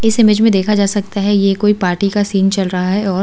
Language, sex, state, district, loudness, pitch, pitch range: Hindi, female, Delhi, New Delhi, -14 LUFS, 200 Hz, 195-210 Hz